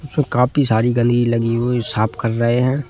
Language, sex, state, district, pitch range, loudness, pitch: Hindi, male, Madhya Pradesh, Bhopal, 115-125 Hz, -17 LUFS, 120 Hz